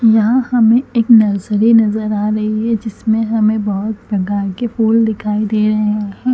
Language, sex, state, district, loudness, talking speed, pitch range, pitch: Hindi, female, Chhattisgarh, Bilaspur, -14 LUFS, 170 wpm, 210-225 Hz, 220 Hz